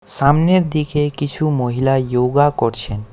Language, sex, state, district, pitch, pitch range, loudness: Bengali, male, West Bengal, Alipurduar, 140 Hz, 125-150 Hz, -17 LUFS